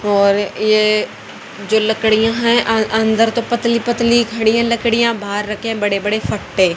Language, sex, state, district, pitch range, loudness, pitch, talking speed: Hindi, female, Haryana, Rohtak, 210-235 Hz, -15 LUFS, 220 Hz, 150 wpm